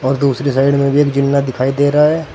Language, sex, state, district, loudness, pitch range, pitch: Hindi, male, Uttar Pradesh, Saharanpur, -14 LUFS, 135-145 Hz, 140 Hz